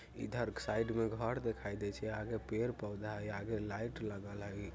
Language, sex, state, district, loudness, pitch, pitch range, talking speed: Bajjika, male, Bihar, Vaishali, -40 LUFS, 110 Hz, 100-115 Hz, 190 wpm